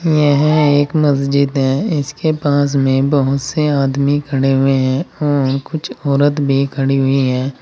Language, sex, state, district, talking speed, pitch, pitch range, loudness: Hindi, male, Uttar Pradesh, Saharanpur, 155 wpm, 140 Hz, 135-145 Hz, -15 LUFS